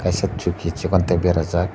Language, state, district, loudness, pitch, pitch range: Kokborok, Tripura, Dhalai, -21 LUFS, 90 Hz, 85-95 Hz